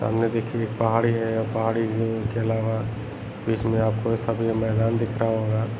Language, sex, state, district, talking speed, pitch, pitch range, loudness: Hindi, male, Chhattisgarh, Raigarh, 165 wpm, 115 Hz, 110-115 Hz, -24 LUFS